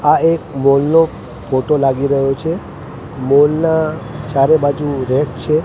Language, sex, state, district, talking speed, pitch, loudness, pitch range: Gujarati, male, Gujarat, Gandhinagar, 150 wpm, 145 Hz, -15 LUFS, 135-155 Hz